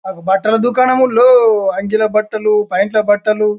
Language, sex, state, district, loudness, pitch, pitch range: Telugu, male, Telangana, Karimnagar, -13 LUFS, 215 Hz, 205-225 Hz